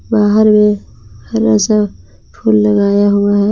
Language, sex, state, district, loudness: Hindi, female, Jharkhand, Palamu, -12 LUFS